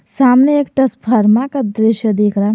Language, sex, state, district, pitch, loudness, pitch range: Hindi, male, Jharkhand, Garhwa, 230 Hz, -13 LUFS, 215-265 Hz